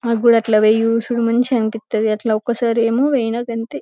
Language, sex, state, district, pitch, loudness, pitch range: Telugu, female, Telangana, Karimnagar, 230 Hz, -17 LUFS, 225-235 Hz